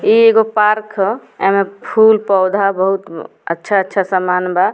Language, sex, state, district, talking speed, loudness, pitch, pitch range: Bhojpuri, female, Bihar, Muzaffarpur, 125 wpm, -14 LUFS, 195 Hz, 185-215 Hz